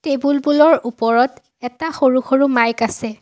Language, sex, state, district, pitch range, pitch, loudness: Assamese, female, Assam, Sonitpur, 235-285 Hz, 255 Hz, -16 LUFS